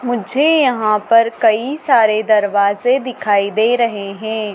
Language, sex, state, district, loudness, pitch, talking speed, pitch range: Hindi, female, Madhya Pradesh, Dhar, -15 LUFS, 220 Hz, 130 wpm, 210-245 Hz